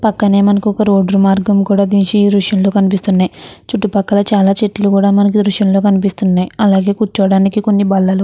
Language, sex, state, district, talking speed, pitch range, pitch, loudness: Telugu, female, Andhra Pradesh, Chittoor, 160 wpm, 195-205 Hz, 200 Hz, -12 LUFS